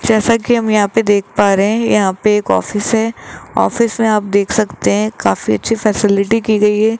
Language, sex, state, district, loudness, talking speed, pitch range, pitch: Hindi, male, Rajasthan, Jaipur, -14 LUFS, 220 wpm, 205-225 Hz, 215 Hz